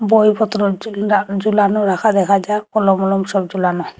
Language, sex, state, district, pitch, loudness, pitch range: Bengali, female, Assam, Hailakandi, 205 Hz, -16 LUFS, 195-215 Hz